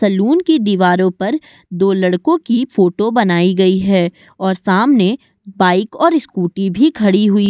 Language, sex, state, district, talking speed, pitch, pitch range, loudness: Hindi, female, Uttar Pradesh, Budaun, 160 wpm, 195 Hz, 185-245 Hz, -14 LUFS